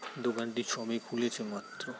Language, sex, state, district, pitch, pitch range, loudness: Bengali, male, West Bengal, Jalpaiguri, 115 Hz, 115-120 Hz, -35 LUFS